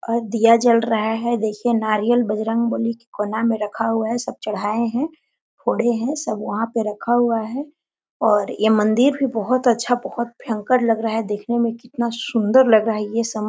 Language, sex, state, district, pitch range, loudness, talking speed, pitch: Hindi, female, Chhattisgarh, Korba, 220-240 Hz, -20 LUFS, 195 wpm, 230 Hz